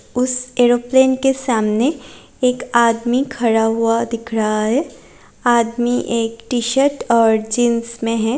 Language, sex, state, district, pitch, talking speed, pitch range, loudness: Hindi, female, Chhattisgarh, Raigarh, 235 Hz, 130 wpm, 230-250 Hz, -17 LUFS